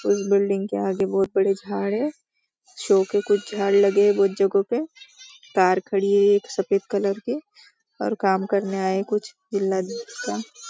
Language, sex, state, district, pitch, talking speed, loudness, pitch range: Hindi, female, Maharashtra, Nagpur, 200 Hz, 170 wpm, -22 LUFS, 195-210 Hz